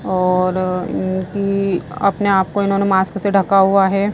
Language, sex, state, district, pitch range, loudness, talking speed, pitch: Hindi, female, Himachal Pradesh, Shimla, 185-200 Hz, -17 LUFS, 160 wpm, 195 Hz